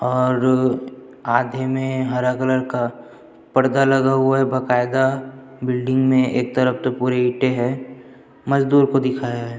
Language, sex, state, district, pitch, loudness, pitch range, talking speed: Hindi, male, Chhattisgarh, Jashpur, 130 Hz, -19 LUFS, 125-130 Hz, 145 wpm